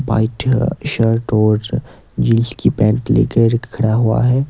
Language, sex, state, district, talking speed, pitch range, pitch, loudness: Hindi, male, Himachal Pradesh, Shimla, 135 wpm, 110-120 Hz, 115 Hz, -16 LUFS